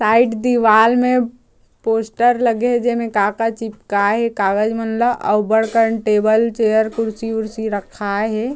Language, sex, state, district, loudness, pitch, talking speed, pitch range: Chhattisgarhi, female, Chhattisgarh, Jashpur, -17 LUFS, 225 Hz, 160 wpm, 215-235 Hz